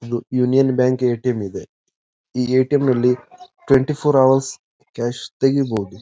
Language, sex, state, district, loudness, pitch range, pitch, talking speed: Kannada, male, Karnataka, Bijapur, -18 LUFS, 120-135 Hz, 130 Hz, 130 wpm